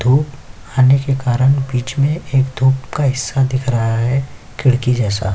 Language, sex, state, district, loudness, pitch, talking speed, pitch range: Hindi, male, Chhattisgarh, Kabirdham, -16 LUFS, 130 Hz, 170 wpm, 120-135 Hz